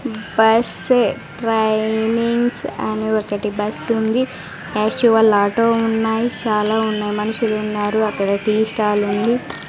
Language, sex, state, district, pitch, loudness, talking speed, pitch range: Telugu, female, Andhra Pradesh, Sri Satya Sai, 220 Hz, -18 LUFS, 110 wpm, 210-230 Hz